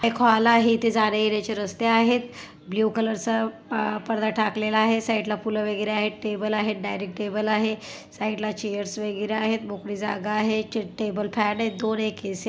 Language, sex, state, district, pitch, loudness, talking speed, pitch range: Marathi, female, Maharashtra, Pune, 215 Hz, -24 LUFS, 175 wpm, 210-220 Hz